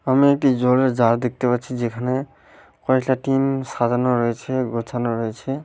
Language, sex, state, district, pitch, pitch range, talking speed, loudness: Bengali, male, West Bengal, Malda, 125 Hz, 120-130 Hz, 140 wpm, -20 LUFS